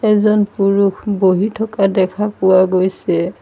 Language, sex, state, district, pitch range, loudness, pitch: Assamese, female, Assam, Sonitpur, 190-210 Hz, -15 LUFS, 200 Hz